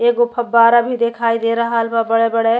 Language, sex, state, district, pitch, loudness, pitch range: Bhojpuri, female, Uttar Pradesh, Ghazipur, 235 Hz, -15 LUFS, 230-240 Hz